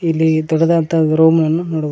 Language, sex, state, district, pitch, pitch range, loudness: Kannada, male, Karnataka, Koppal, 160 Hz, 160-165 Hz, -14 LUFS